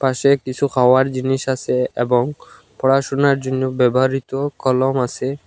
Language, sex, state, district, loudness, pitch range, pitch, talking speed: Bengali, male, Assam, Hailakandi, -18 LUFS, 130-135 Hz, 130 Hz, 120 wpm